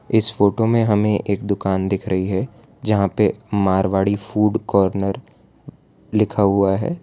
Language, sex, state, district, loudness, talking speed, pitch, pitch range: Hindi, male, Gujarat, Valsad, -19 LUFS, 145 wpm, 100 Hz, 95-110 Hz